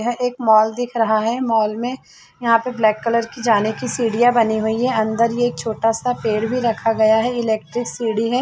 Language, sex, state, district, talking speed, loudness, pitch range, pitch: Hindi, female, Chhattisgarh, Bilaspur, 235 wpm, -18 LUFS, 220-245 Hz, 230 Hz